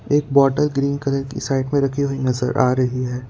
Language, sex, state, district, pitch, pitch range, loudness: Hindi, male, Gujarat, Valsad, 135 Hz, 130-140 Hz, -19 LUFS